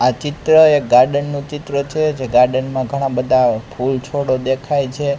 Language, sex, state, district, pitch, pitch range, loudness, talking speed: Gujarati, male, Gujarat, Gandhinagar, 135 Hz, 130-145 Hz, -16 LUFS, 185 wpm